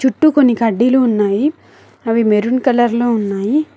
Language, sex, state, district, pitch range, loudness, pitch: Telugu, female, Telangana, Mahabubabad, 225-260 Hz, -14 LUFS, 240 Hz